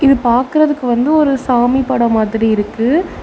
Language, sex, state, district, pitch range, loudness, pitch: Tamil, female, Tamil Nadu, Nilgiris, 235-275 Hz, -13 LUFS, 255 Hz